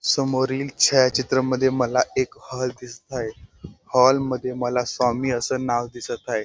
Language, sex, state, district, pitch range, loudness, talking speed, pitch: Marathi, male, Maharashtra, Dhule, 125-130 Hz, -22 LUFS, 140 wpm, 130 Hz